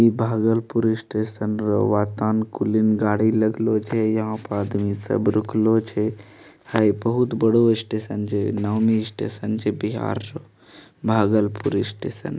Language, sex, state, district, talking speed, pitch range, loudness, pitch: Angika, male, Bihar, Bhagalpur, 120 wpm, 105-110 Hz, -22 LUFS, 110 Hz